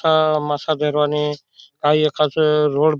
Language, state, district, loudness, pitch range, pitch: Bhili, Maharashtra, Dhule, -18 LUFS, 150-155 Hz, 150 Hz